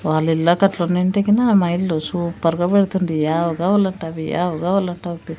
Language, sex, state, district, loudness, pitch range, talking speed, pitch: Telugu, female, Andhra Pradesh, Sri Satya Sai, -18 LUFS, 165-190 Hz, 145 wpm, 175 Hz